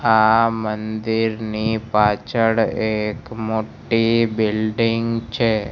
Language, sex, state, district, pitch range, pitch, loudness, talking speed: Gujarati, male, Gujarat, Gandhinagar, 110-115 Hz, 110 Hz, -20 LUFS, 75 wpm